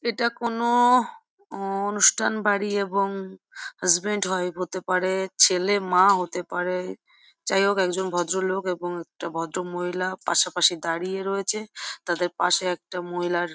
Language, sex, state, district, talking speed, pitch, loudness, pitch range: Bengali, female, West Bengal, Jhargram, 135 wpm, 185 Hz, -24 LUFS, 180-200 Hz